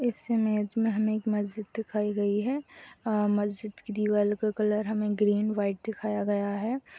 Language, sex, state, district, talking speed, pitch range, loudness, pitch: Hindi, female, Chhattisgarh, Kabirdham, 180 wpm, 205-220 Hz, -29 LUFS, 210 Hz